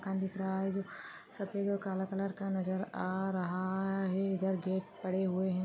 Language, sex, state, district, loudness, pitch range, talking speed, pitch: Hindi, female, Chhattisgarh, Balrampur, -36 LUFS, 190-195 Hz, 200 wpm, 190 Hz